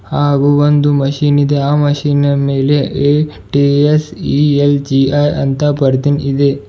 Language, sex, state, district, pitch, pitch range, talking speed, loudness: Kannada, male, Karnataka, Bidar, 145 Hz, 140-145 Hz, 115 wpm, -12 LUFS